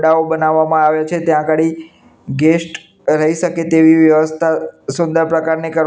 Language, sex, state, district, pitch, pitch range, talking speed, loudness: Gujarati, male, Gujarat, Gandhinagar, 160 Hz, 155-165 Hz, 145 wpm, -14 LUFS